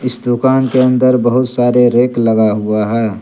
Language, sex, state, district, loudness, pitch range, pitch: Hindi, male, Jharkhand, Garhwa, -12 LUFS, 115-125 Hz, 120 Hz